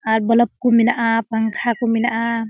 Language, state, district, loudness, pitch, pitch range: Surjapuri, Bihar, Kishanganj, -18 LUFS, 230 Hz, 225-235 Hz